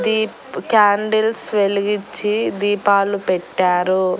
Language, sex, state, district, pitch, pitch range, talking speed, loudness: Telugu, female, Andhra Pradesh, Annamaya, 205 Hz, 190-215 Hz, 70 wpm, -18 LUFS